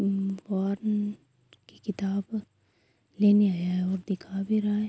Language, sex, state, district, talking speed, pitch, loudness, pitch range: Urdu, female, Andhra Pradesh, Anantapur, 135 wpm, 195 Hz, -28 LUFS, 140-205 Hz